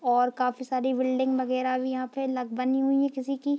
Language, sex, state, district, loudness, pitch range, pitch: Hindi, female, Bihar, Darbhanga, -27 LUFS, 255-265 Hz, 260 Hz